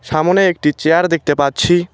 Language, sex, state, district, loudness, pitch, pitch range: Bengali, male, West Bengal, Cooch Behar, -14 LUFS, 160 Hz, 150-175 Hz